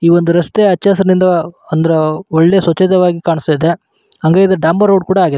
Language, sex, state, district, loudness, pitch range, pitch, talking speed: Kannada, male, Karnataka, Raichur, -12 LUFS, 165-190 Hz, 175 Hz, 165 wpm